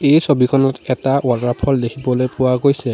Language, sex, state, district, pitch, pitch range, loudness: Assamese, male, Assam, Sonitpur, 130 Hz, 125-140 Hz, -16 LUFS